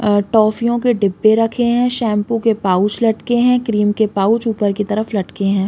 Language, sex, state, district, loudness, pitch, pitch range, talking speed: Hindi, female, Uttar Pradesh, Varanasi, -16 LUFS, 215 Hz, 205-235 Hz, 200 wpm